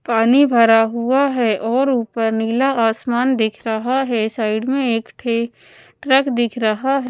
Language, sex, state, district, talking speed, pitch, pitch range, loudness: Hindi, female, Odisha, Nuapada, 150 wpm, 235 Hz, 225-260 Hz, -17 LUFS